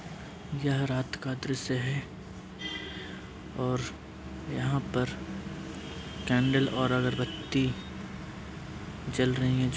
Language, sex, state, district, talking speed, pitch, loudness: Hindi, male, Uttar Pradesh, Varanasi, 100 wpm, 130 Hz, -32 LUFS